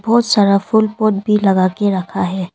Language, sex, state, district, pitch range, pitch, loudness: Hindi, female, Arunachal Pradesh, Longding, 190-215 Hz, 205 Hz, -15 LUFS